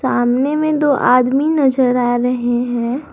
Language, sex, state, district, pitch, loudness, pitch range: Hindi, female, Jharkhand, Garhwa, 255 Hz, -15 LUFS, 245-285 Hz